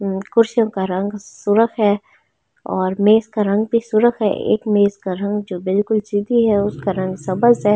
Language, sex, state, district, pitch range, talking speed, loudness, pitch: Hindi, female, Delhi, New Delhi, 195-220 Hz, 185 wpm, -18 LUFS, 205 Hz